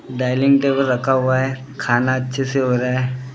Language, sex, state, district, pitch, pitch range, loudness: Hindi, male, Maharashtra, Gondia, 130 Hz, 125-135 Hz, -18 LUFS